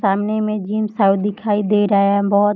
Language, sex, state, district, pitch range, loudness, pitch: Hindi, female, Bihar, Darbhanga, 200-210 Hz, -17 LUFS, 205 Hz